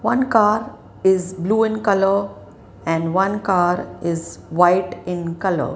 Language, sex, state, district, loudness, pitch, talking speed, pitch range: English, female, Maharashtra, Mumbai Suburban, -19 LUFS, 185 Hz, 135 wpm, 175-210 Hz